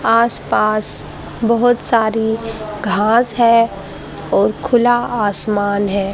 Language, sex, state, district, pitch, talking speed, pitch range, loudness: Hindi, female, Haryana, Charkhi Dadri, 225 Hz, 100 wpm, 210-235 Hz, -16 LUFS